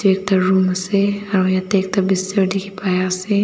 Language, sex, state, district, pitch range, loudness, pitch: Nagamese, female, Nagaland, Dimapur, 185-195 Hz, -18 LUFS, 190 Hz